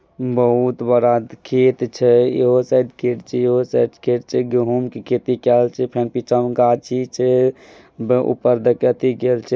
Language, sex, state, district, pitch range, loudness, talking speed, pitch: Maithili, male, Bihar, Madhepura, 120-125 Hz, -17 LUFS, 155 wpm, 125 Hz